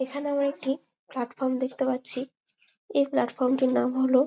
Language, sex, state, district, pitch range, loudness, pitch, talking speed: Bengali, female, West Bengal, Malda, 255-275 Hz, -26 LUFS, 260 Hz, 170 wpm